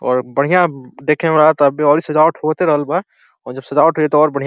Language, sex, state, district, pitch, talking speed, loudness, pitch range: Bhojpuri, male, Uttar Pradesh, Deoria, 150 Hz, 270 wpm, -14 LUFS, 140-155 Hz